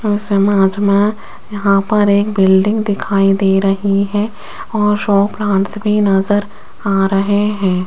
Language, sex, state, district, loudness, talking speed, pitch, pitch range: Hindi, female, Rajasthan, Jaipur, -14 LUFS, 145 wpm, 200 Hz, 195-210 Hz